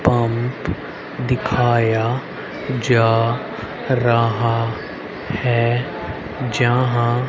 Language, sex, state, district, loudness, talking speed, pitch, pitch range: Hindi, male, Haryana, Rohtak, -19 LUFS, 50 wpm, 120 Hz, 115-125 Hz